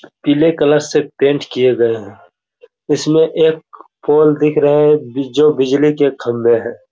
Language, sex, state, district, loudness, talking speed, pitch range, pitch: Hindi, male, Chhattisgarh, Raigarh, -14 LUFS, 155 wpm, 130-150 Hz, 145 Hz